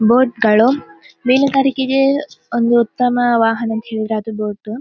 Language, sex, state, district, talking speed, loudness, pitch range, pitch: Kannada, female, Karnataka, Dakshina Kannada, 135 wpm, -16 LUFS, 220-260 Hz, 235 Hz